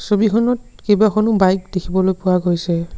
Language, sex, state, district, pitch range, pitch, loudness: Assamese, male, Assam, Sonitpur, 180-215 Hz, 190 Hz, -17 LUFS